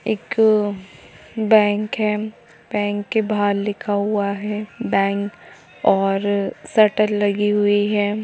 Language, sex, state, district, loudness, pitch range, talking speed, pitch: Hindi, female, Jharkhand, Jamtara, -19 LUFS, 205-215 Hz, 110 wpm, 205 Hz